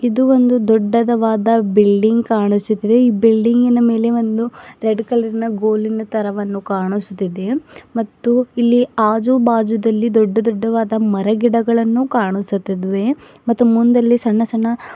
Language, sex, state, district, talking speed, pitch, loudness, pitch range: Kannada, female, Karnataka, Bidar, 125 wpm, 225 Hz, -16 LUFS, 215-235 Hz